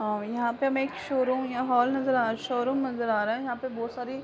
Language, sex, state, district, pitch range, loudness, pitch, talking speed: Hindi, female, Uttar Pradesh, Hamirpur, 235-260 Hz, -28 LUFS, 250 Hz, 285 wpm